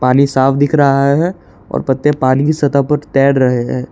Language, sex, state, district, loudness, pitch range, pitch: Hindi, male, Jharkhand, Palamu, -13 LUFS, 130-145 Hz, 140 Hz